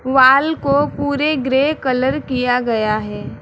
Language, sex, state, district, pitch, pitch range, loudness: Hindi, female, West Bengal, Alipurduar, 265 Hz, 250-285 Hz, -16 LUFS